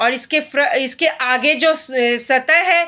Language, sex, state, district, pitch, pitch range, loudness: Hindi, female, Bihar, Bhagalpur, 285 Hz, 255-320 Hz, -15 LUFS